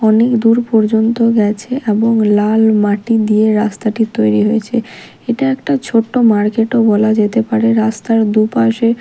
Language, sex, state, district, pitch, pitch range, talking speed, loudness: Bengali, female, Odisha, Malkangiri, 220 Hz, 215-230 Hz, 140 wpm, -13 LUFS